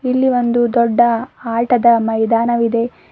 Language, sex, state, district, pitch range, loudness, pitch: Kannada, female, Karnataka, Bidar, 230-245 Hz, -15 LUFS, 235 Hz